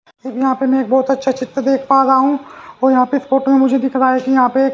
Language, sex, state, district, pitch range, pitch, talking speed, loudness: Hindi, male, Haryana, Jhajjar, 260-270 Hz, 265 Hz, 305 wpm, -14 LUFS